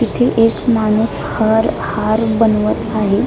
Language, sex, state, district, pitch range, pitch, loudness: Marathi, female, Maharashtra, Mumbai Suburban, 215-225 Hz, 220 Hz, -15 LUFS